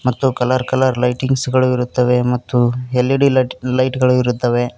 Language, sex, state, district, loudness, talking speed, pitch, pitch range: Kannada, male, Karnataka, Koppal, -16 LUFS, 150 wpm, 125 Hz, 125-130 Hz